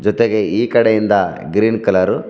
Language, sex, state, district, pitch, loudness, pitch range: Kannada, male, Karnataka, Bidar, 110 Hz, -15 LUFS, 105-115 Hz